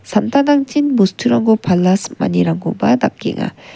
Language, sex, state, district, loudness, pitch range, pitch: Garo, female, Meghalaya, West Garo Hills, -15 LUFS, 185-275 Hz, 220 Hz